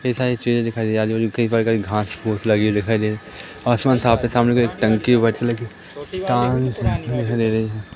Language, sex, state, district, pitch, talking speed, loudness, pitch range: Hindi, male, Madhya Pradesh, Katni, 115 Hz, 195 wpm, -19 LUFS, 110-120 Hz